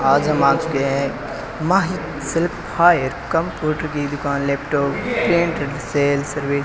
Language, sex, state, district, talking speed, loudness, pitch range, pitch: Hindi, male, Rajasthan, Bikaner, 135 wpm, -20 LUFS, 140-165 Hz, 145 Hz